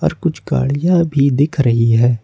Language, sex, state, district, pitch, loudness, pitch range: Hindi, male, Jharkhand, Ranchi, 140 Hz, -15 LUFS, 120-150 Hz